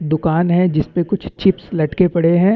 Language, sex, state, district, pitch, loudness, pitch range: Hindi, male, Chhattisgarh, Bastar, 175 Hz, -16 LUFS, 160-185 Hz